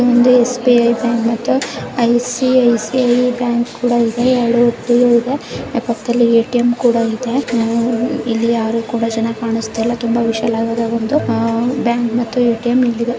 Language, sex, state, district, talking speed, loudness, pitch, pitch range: Kannada, male, Karnataka, Bijapur, 130 wpm, -15 LUFS, 235 Hz, 230-245 Hz